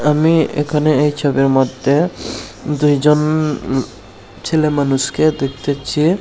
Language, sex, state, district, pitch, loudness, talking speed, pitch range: Bengali, male, Tripura, Unakoti, 145 Hz, -16 LUFS, 85 wpm, 135-155 Hz